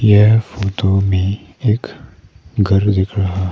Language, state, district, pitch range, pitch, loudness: Hindi, Arunachal Pradesh, Papum Pare, 95-105 Hz, 100 Hz, -16 LUFS